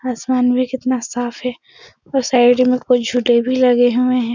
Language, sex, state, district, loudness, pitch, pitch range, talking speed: Hindi, female, Bihar, Supaul, -16 LUFS, 250 Hz, 245-255 Hz, 195 wpm